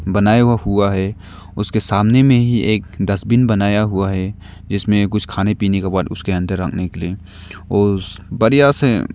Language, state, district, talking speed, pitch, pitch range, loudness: Hindi, Arunachal Pradesh, Lower Dibang Valley, 170 wpm, 100 Hz, 95-105 Hz, -16 LUFS